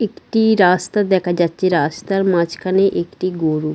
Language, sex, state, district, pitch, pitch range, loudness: Bengali, female, West Bengal, Dakshin Dinajpur, 185 Hz, 170-195 Hz, -17 LUFS